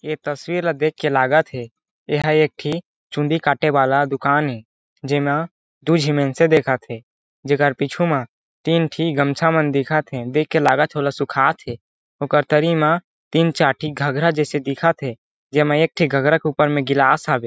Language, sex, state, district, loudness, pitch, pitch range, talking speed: Chhattisgarhi, male, Chhattisgarh, Jashpur, -19 LUFS, 150 Hz, 140-160 Hz, 190 wpm